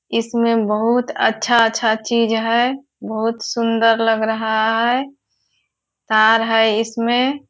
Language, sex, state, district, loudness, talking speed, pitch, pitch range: Hindi, female, Bihar, Purnia, -17 LUFS, 105 wpm, 225 Hz, 220-235 Hz